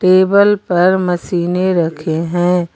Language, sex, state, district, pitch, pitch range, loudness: Hindi, female, Jharkhand, Garhwa, 180 Hz, 170-185 Hz, -14 LUFS